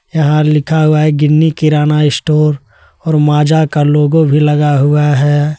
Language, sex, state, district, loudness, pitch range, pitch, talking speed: Hindi, male, Jharkhand, Deoghar, -11 LUFS, 150-155 Hz, 150 Hz, 160 wpm